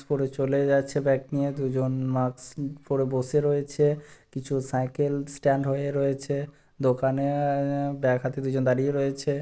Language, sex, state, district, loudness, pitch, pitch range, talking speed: Bengali, male, West Bengal, Purulia, -26 LUFS, 140 Hz, 135-140 Hz, 140 wpm